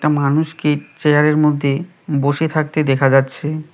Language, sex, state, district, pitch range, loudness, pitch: Bengali, male, West Bengal, Cooch Behar, 145-155 Hz, -17 LUFS, 150 Hz